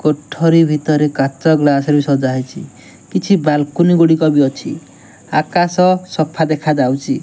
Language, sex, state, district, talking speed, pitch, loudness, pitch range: Odia, male, Odisha, Nuapada, 135 wpm, 155 Hz, -14 LUFS, 145-165 Hz